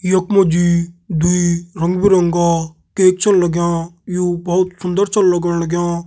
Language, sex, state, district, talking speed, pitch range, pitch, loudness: Garhwali, male, Uttarakhand, Tehri Garhwal, 160 wpm, 170-185 Hz, 175 Hz, -16 LUFS